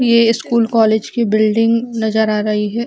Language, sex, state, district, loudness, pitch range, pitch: Hindi, female, Chhattisgarh, Balrampur, -15 LUFS, 215-235 Hz, 225 Hz